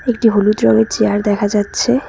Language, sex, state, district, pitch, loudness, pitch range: Bengali, female, West Bengal, Cooch Behar, 210 Hz, -14 LUFS, 205-235 Hz